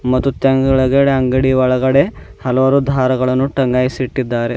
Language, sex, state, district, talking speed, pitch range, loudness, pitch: Kannada, male, Karnataka, Bidar, 105 wpm, 130-135 Hz, -14 LUFS, 130 Hz